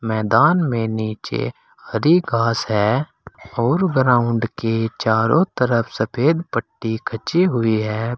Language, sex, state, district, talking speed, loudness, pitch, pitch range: Hindi, male, Uttar Pradesh, Saharanpur, 115 wpm, -19 LUFS, 115 Hz, 110-140 Hz